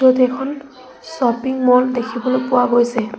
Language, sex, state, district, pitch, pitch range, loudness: Assamese, female, Assam, Sonitpur, 255 Hz, 245-260 Hz, -17 LUFS